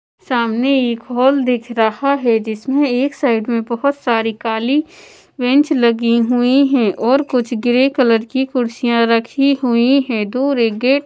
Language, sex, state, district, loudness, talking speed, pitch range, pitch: Hindi, female, Odisha, Nuapada, -15 LUFS, 165 wpm, 230-275 Hz, 245 Hz